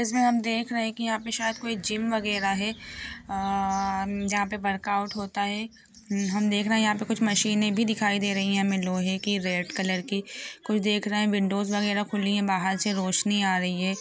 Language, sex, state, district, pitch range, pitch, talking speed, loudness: Hindi, female, Bihar, Samastipur, 195-215 Hz, 205 Hz, 235 wpm, -26 LUFS